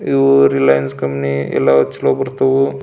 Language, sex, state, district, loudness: Kannada, male, Karnataka, Belgaum, -14 LUFS